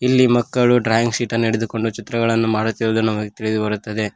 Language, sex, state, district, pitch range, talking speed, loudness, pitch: Kannada, male, Karnataka, Koppal, 110-115 Hz, 160 wpm, -19 LUFS, 115 Hz